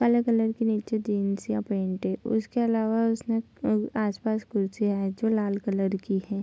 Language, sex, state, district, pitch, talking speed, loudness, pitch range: Hindi, female, Bihar, Madhepura, 215 Hz, 175 wpm, -27 LUFS, 200-225 Hz